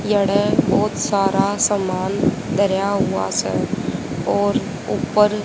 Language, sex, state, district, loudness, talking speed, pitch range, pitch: Hindi, female, Haryana, Jhajjar, -19 LUFS, 90 wpm, 195-205 Hz, 200 Hz